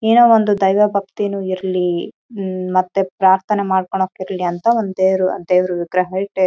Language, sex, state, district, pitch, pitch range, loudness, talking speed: Kannada, female, Karnataka, Raichur, 190 Hz, 185-200 Hz, -17 LUFS, 150 wpm